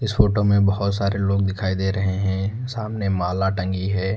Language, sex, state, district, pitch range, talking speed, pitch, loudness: Hindi, male, Uttar Pradesh, Lucknow, 95-100 Hz, 200 wpm, 100 Hz, -22 LUFS